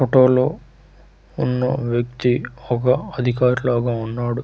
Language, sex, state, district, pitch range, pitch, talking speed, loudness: Telugu, male, Andhra Pradesh, Manyam, 120-130 Hz, 125 Hz, 120 wpm, -20 LUFS